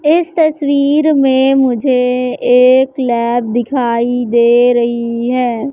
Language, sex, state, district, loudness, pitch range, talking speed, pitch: Hindi, female, Madhya Pradesh, Katni, -12 LUFS, 240-275 Hz, 105 wpm, 250 Hz